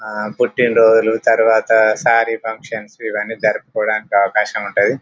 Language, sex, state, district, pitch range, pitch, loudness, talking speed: Telugu, male, Telangana, Karimnagar, 110-115 Hz, 110 Hz, -15 LUFS, 120 wpm